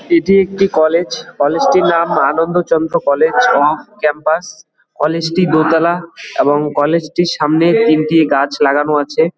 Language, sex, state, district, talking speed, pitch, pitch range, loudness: Bengali, male, West Bengal, Jalpaiguri, 145 wpm, 165 Hz, 150-175 Hz, -13 LUFS